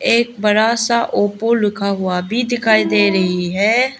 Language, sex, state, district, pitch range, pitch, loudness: Hindi, female, Arunachal Pradesh, Lower Dibang Valley, 200-235 Hz, 215 Hz, -16 LUFS